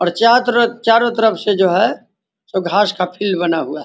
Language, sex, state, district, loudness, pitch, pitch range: Hindi, male, Bihar, Vaishali, -15 LUFS, 205 Hz, 180-230 Hz